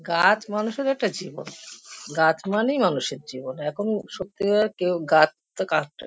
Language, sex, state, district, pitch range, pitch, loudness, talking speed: Bengali, female, West Bengal, Kolkata, 160-215 Hz, 195 Hz, -23 LUFS, 150 wpm